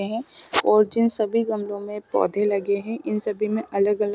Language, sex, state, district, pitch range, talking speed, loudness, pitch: Hindi, female, Bihar, West Champaran, 205-225 Hz, 190 wpm, -23 LUFS, 210 Hz